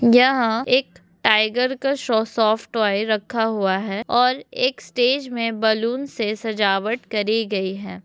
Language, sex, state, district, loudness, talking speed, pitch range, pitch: Hindi, female, Uttar Pradesh, Hamirpur, -20 LUFS, 150 wpm, 210-250 Hz, 225 Hz